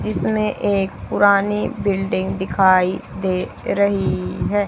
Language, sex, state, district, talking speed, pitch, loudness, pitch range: Hindi, female, Haryana, Charkhi Dadri, 100 wpm, 195 Hz, -19 LUFS, 185-205 Hz